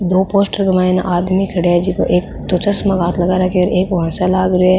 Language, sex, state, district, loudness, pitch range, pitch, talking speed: Rajasthani, female, Rajasthan, Nagaur, -15 LUFS, 180-190 Hz, 185 Hz, 275 wpm